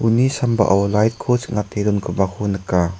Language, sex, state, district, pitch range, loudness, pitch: Garo, male, Meghalaya, West Garo Hills, 95-115 Hz, -19 LUFS, 105 Hz